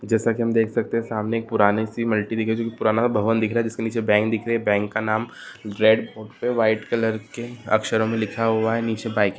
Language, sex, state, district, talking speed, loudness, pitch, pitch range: Marwari, male, Rajasthan, Nagaur, 230 wpm, -22 LUFS, 110 Hz, 110-115 Hz